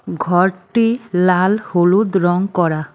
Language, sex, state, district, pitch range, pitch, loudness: Bengali, female, West Bengal, Cooch Behar, 175-200 Hz, 185 Hz, -16 LUFS